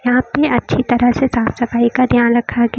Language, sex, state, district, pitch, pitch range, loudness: Hindi, female, Uttar Pradesh, Lucknow, 245 Hz, 235-250 Hz, -15 LUFS